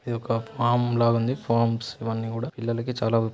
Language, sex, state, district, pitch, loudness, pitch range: Telugu, male, Telangana, Nalgonda, 115 Hz, -25 LUFS, 115-120 Hz